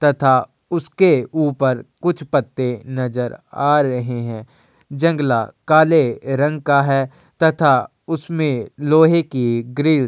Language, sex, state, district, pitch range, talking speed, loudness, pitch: Hindi, male, Uttar Pradesh, Jyotiba Phule Nagar, 125-160 Hz, 120 wpm, -18 LUFS, 140 Hz